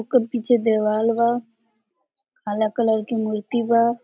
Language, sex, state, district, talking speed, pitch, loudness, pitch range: Hindi, female, Jharkhand, Sahebganj, 135 wpm, 230 Hz, -21 LUFS, 220-240 Hz